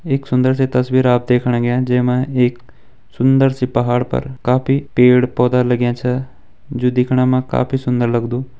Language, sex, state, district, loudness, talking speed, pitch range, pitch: Hindi, male, Uttarakhand, Tehri Garhwal, -16 LUFS, 160 wpm, 125-130 Hz, 125 Hz